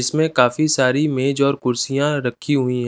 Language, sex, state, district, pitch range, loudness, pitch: Hindi, male, Chandigarh, Chandigarh, 125-150 Hz, -18 LUFS, 135 Hz